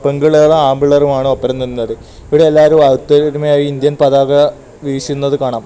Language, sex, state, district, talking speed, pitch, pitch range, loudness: Malayalam, male, Kerala, Kasaragod, 140 wpm, 140 Hz, 135-145 Hz, -11 LUFS